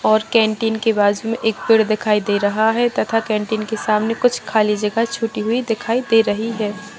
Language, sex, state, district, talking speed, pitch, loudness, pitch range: Hindi, female, Bihar, Saharsa, 205 wpm, 220 Hz, -18 LUFS, 210-225 Hz